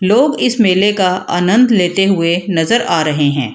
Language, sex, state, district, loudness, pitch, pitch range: Hindi, female, Bihar, Gaya, -13 LUFS, 185 Hz, 170-215 Hz